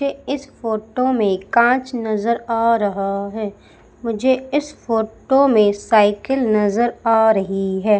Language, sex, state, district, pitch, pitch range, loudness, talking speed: Hindi, female, Madhya Pradesh, Umaria, 225 Hz, 210-255 Hz, -18 LUFS, 125 wpm